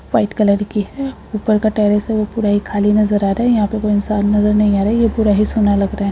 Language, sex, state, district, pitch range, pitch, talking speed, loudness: Hindi, female, Uttar Pradesh, Ghazipur, 205-215 Hz, 210 Hz, 315 wpm, -16 LUFS